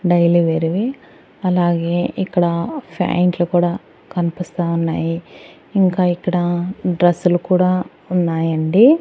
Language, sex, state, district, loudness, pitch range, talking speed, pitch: Telugu, female, Andhra Pradesh, Annamaya, -18 LUFS, 170-180 Hz, 95 wpm, 175 Hz